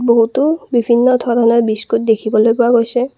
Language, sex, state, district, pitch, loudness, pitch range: Assamese, female, Assam, Kamrup Metropolitan, 235 Hz, -13 LUFS, 230-245 Hz